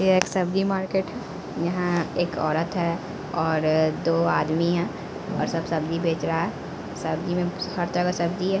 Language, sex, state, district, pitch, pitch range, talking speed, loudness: Hindi, female, Bihar, Patna, 175 Hz, 165-185 Hz, 180 wpm, -25 LUFS